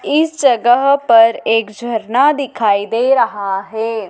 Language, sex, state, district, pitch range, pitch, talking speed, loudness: Hindi, female, Madhya Pradesh, Dhar, 215-265 Hz, 230 Hz, 130 wpm, -14 LUFS